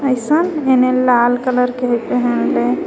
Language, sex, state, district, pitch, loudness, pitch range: Magahi, female, Jharkhand, Palamu, 250 Hz, -15 LUFS, 245-260 Hz